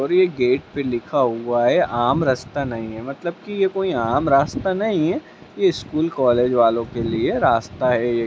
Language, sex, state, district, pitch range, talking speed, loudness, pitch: Hindi, male, Bihar, Jamui, 120-170 Hz, 210 wpm, -20 LUFS, 130 Hz